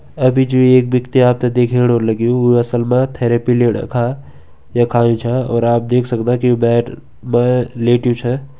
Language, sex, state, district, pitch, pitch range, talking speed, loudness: Garhwali, male, Uttarakhand, Tehri Garhwal, 120 Hz, 120-125 Hz, 190 wpm, -14 LUFS